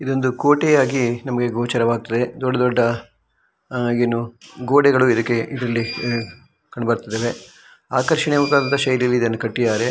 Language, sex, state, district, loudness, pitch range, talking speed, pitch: Kannada, male, Karnataka, Shimoga, -19 LUFS, 115-130 Hz, 120 wpm, 120 Hz